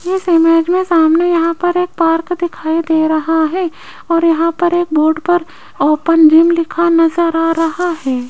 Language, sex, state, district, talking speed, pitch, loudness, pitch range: Hindi, female, Rajasthan, Jaipur, 180 wpm, 330 Hz, -13 LUFS, 320-345 Hz